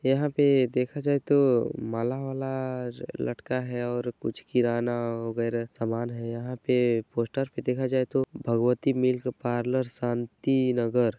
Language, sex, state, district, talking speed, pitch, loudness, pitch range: Hindi, male, Chhattisgarh, Bilaspur, 145 wpm, 125 Hz, -27 LUFS, 120-130 Hz